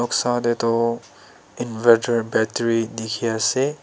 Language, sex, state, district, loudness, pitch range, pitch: Nagamese, male, Nagaland, Dimapur, -21 LUFS, 115-120 Hz, 115 Hz